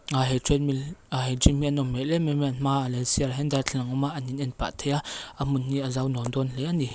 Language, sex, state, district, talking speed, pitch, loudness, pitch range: Mizo, female, Mizoram, Aizawl, 300 wpm, 135 Hz, -27 LUFS, 130-145 Hz